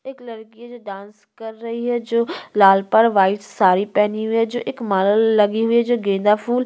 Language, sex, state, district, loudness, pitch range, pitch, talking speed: Hindi, female, Chhattisgarh, Korba, -18 LUFS, 205-235 Hz, 220 Hz, 235 wpm